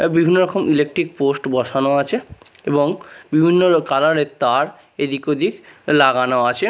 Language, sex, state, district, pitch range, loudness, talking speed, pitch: Bengali, male, Odisha, Nuapada, 135-165 Hz, -17 LUFS, 145 wpm, 145 Hz